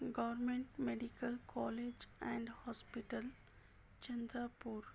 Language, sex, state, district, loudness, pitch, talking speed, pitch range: Hindi, female, Maharashtra, Chandrapur, -45 LUFS, 240 Hz, 75 wpm, 235-245 Hz